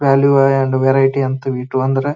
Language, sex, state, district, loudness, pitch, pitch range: Kannada, male, Karnataka, Bijapur, -15 LUFS, 135 Hz, 130-135 Hz